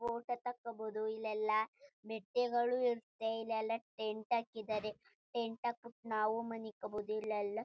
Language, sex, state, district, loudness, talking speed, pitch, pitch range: Kannada, female, Karnataka, Chamarajanagar, -39 LUFS, 110 wpm, 225 Hz, 215-235 Hz